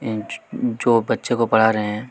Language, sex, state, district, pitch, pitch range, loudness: Hindi, male, Chhattisgarh, Kabirdham, 110 Hz, 110-120 Hz, -20 LUFS